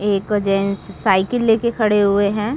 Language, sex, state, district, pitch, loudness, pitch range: Hindi, female, Chhattisgarh, Bastar, 205 Hz, -17 LUFS, 200-220 Hz